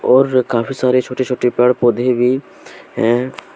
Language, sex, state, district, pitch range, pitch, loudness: Hindi, male, Jharkhand, Deoghar, 125-130 Hz, 125 Hz, -15 LUFS